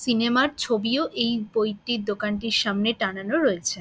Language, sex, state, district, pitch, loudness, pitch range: Bengali, female, West Bengal, Dakshin Dinajpur, 225 Hz, -24 LUFS, 210-240 Hz